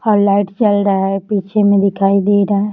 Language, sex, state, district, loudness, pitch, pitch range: Hindi, female, Jharkhand, Jamtara, -14 LUFS, 200 Hz, 195-205 Hz